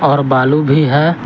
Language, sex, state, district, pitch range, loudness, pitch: Hindi, male, Jharkhand, Garhwa, 140-155 Hz, -12 LUFS, 145 Hz